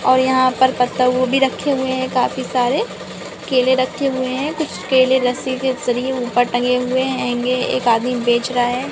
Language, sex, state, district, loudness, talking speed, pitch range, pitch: Hindi, female, Bihar, Jamui, -17 LUFS, 190 wpm, 250-260 Hz, 255 Hz